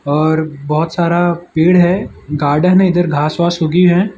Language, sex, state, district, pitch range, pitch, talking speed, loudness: Hindi, male, Gujarat, Valsad, 155-175 Hz, 170 Hz, 170 wpm, -13 LUFS